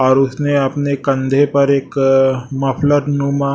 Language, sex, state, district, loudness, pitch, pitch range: Hindi, male, Chhattisgarh, Raipur, -15 LUFS, 140 Hz, 135-140 Hz